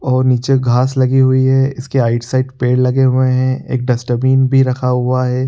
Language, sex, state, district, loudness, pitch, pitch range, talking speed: Sadri, male, Chhattisgarh, Jashpur, -14 LUFS, 130 Hz, 125-130 Hz, 210 wpm